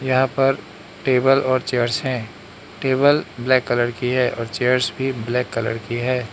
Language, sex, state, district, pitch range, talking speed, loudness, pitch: Hindi, male, Arunachal Pradesh, Lower Dibang Valley, 120-130 Hz, 170 wpm, -20 LUFS, 125 Hz